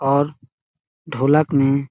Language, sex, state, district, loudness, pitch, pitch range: Hindi, male, Chhattisgarh, Sarguja, -18 LUFS, 140 Hz, 135-150 Hz